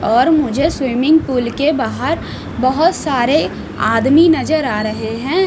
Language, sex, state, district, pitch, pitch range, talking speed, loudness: Hindi, female, Maharashtra, Washim, 285 Hz, 250-315 Hz, 145 wpm, -15 LUFS